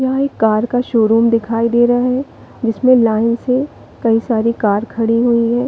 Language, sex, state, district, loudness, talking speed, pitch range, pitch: Hindi, female, Chhattisgarh, Bilaspur, -15 LUFS, 170 wpm, 225-250 Hz, 235 Hz